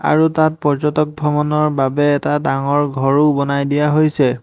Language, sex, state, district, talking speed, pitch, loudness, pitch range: Assamese, male, Assam, Hailakandi, 150 wpm, 150 Hz, -16 LUFS, 140-150 Hz